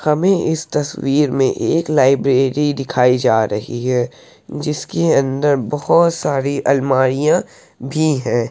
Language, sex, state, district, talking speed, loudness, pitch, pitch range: Hindi, male, Uttar Pradesh, Hamirpur, 120 wpm, -16 LUFS, 140 Hz, 130-150 Hz